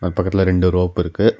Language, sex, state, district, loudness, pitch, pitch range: Tamil, male, Tamil Nadu, Nilgiris, -17 LUFS, 90 Hz, 90-95 Hz